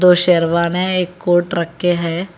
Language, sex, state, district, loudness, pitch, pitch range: Hindi, female, Telangana, Hyderabad, -16 LUFS, 175 Hz, 170-180 Hz